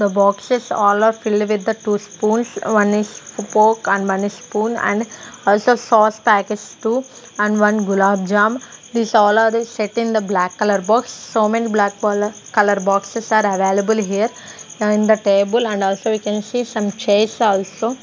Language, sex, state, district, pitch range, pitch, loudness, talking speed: English, female, Punjab, Kapurthala, 205-225 Hz, 215 Hz, -17 LUFS, 185 wpm